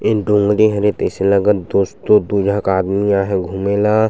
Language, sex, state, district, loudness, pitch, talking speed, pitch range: Chhattisgarhi, male, Chhattisgarh, Sukma, -15 LUFS, 100 Hz, 265 wpm, 100-105 Hz